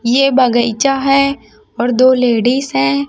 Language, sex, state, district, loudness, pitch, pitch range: Hindi, female, Chhattisgarh, Raipur, -13 LUFS, 250 Hz, 235-270 Hz